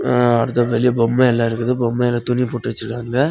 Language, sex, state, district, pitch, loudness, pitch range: Tamil, male, Tamil Nadu, Kanyakumari, 120 Hz, -18 LUFS, 115-125 Hz